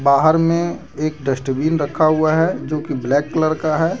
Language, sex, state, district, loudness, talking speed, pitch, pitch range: Hindi, male, Jharkhand, Deoghar, -18 LUFS, 195 wpm, 155 Hz, 145-160 Hz